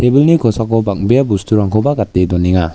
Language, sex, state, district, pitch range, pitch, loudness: Garo, male, Meghalaya, West Garo Hills, 100-125 Hz, 110 Hz, -13 LUFS